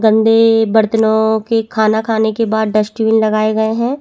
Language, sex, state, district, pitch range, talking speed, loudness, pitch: Hindi, female, Chhattisgarh, Bastar, 220-225 Hz, 165 wpm, -13 LUFS, 220 Hz